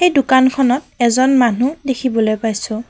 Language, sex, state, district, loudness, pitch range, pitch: Assamese, female, Assam, Kamrup Metropolitan, -15 LUFS, 230-265 Hz, 255 Hz